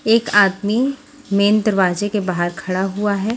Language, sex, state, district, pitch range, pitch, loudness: Hindi, female, Haryana, Jhajjar, 190-220 Hz, 205 Hz, -18 LUFS